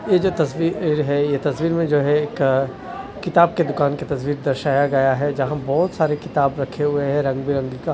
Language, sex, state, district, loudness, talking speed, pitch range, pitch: Hindi, male, Delhi, New Delhi, -20 LUFS, 235 wpm, 140-165 Hz, 145 Hz